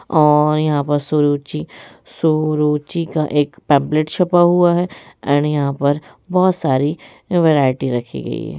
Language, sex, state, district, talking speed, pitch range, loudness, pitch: Hindi, female, Jharkhand, Sahebganj, 155 wpm, 145-165 Hz, -17 LUFS, 150 Hz